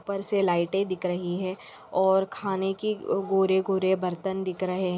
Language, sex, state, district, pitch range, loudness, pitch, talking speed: Hindi, female, Chhattisgarh, Bilaspur, 185-195 Hz, -27 LUFS, 190 Hz, 180 wpm